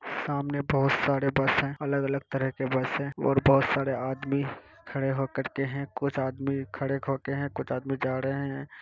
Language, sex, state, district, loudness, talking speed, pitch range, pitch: Hindi, male, Bihar, Kishanganj, -28 LUFS, 190 wpm, 135-140 Hz, 135 Hz